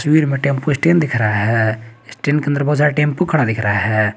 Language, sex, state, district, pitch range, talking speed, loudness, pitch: Hindi, male, Jharkhand, Garhwa, 110-150 Hz, 230 wpm, -16 LUFS, 140 Hz